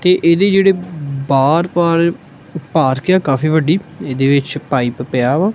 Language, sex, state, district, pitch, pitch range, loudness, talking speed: Punjabi, male, Punjab, Kapurthala, 160 Hz, 135-175 Hz, -15 LUFS, 150 wpm